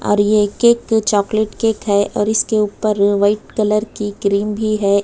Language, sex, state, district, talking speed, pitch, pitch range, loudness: Hindi, female, Uttar Pradesh, Budaun, 180 wpm, 210 Hz, 205-215 Hz, -16 LUFS